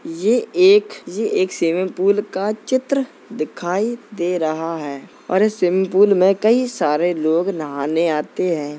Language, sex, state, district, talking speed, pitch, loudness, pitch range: Hindi, male, Uttar Pradesh, Jalaun, 155 wpm, 190 Hz, -18 LUFS, 165-235 Hz